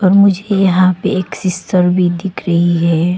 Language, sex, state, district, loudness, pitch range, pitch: Hindi, female, Arunachal Pradesh, Longding, -13 LUFS, 175-190 Hz, 185 Hz